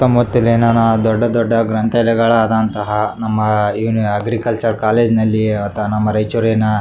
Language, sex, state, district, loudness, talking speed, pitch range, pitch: Kannada, male, Karnataka, Raichur, -15 LUFS, 105 wpm, 105-115 Hz, 110 Hz